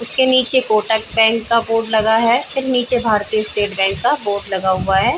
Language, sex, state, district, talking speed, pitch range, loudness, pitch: Hindi, female, Chhattisgarh, Bilaspur, 220 wpm, 205-240 Hz, -15 LUFS, 225 Hz